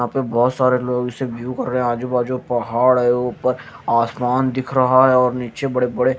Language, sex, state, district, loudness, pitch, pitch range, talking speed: Hindi, male, Haryana, Jhajjar, -18 LUFS, 125 Hz, 125-130 Hz, 225 wpm